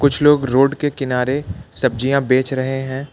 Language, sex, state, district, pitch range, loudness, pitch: Hindi, male, Jharkhand, Ranchi, 130-140 Hz, -18 LUFS, 135 Hz